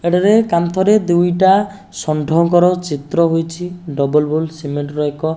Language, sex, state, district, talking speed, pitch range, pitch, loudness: Odia, male, Odisha, Nuapada, 135 wpm, 150-180 Hz, 170 Hz, -15 LUFS